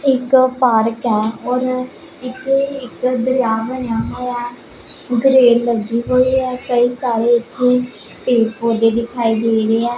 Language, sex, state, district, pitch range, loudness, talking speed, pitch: Punjabi, female, Punjab, Pathankot, 230-255 Hz, -16 LUFS, 130 wpm, 245 Hz